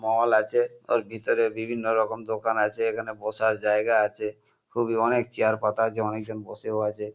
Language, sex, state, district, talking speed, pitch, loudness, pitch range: Bengali, male, West Bengal, North 24 Parganas, 170 wpm, 110 Hz, -26 LUFS, 110-115 Hz